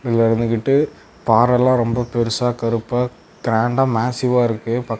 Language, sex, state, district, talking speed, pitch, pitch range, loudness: Tamil, male, Tamil Nadu, Namakkal, 110 wpm, 120 Hz, 115-125 Hz, -18 LUFS